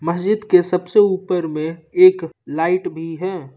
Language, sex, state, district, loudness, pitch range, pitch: Hindi, male, Jharkhand, Ranchi, -17 LUFS, 165-185 Hz, 180 Hz